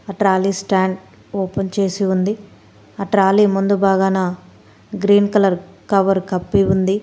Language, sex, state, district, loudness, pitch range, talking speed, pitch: Telugu, female, Telangana, Komaram Bheem, -17 LUFS, 190-200 Hz, 120 wpm, 195 Hz